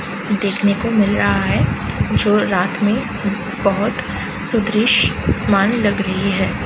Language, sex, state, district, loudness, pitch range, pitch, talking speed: Hindi, female, Uttar Pradesh, Varanasi, -16 LUFS, 195-215 Hz, 205 Hz, 115 wpm